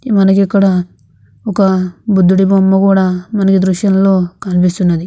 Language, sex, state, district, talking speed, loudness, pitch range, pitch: Telugu, female, Andhra Pradesh, Visakhapatnam, 95 wpm, -12 LUFS, 180-195 Hz, 190 Hz